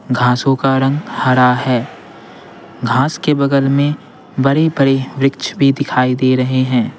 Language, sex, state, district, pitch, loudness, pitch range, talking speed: Hindi, male, Bihar, Patna, 135 Hz, -14 LUFS, 130-140 Hz, 135 wpm